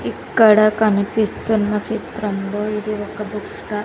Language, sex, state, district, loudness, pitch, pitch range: Telugu, female, Andhra Pradesh, Sri Satya Sai, -18 LUFS, 210 Hz, 210-215 Hz